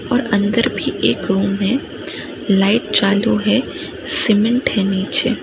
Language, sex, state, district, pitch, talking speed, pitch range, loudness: Hindi, female, Rajasthan, Nagaur, 210 Hz, 135 wpm, 195-235 Hz, -17 LUFS